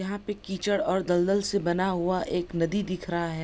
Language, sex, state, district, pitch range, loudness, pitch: Hindi, female, Bihar, Gopalganj, 175-200 Hz, -27 LUFS, 185 Hz